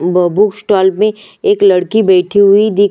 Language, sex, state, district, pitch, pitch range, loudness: Hindi, female, Chhattisgarh, Sukma, 205 Hz, 190-215 Hz, -11 LUFS